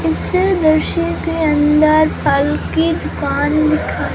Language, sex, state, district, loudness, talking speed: Hindi, female, Rajasthan, Jaisalmer, -15 LUFS, 130 wpm